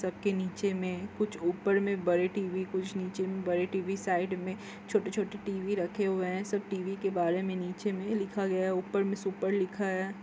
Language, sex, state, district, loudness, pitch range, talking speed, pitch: Hindi, female, Chhattisgarh, Korba, -32 LUFS, 185-200 Hz, 215 wpm, 190 Hz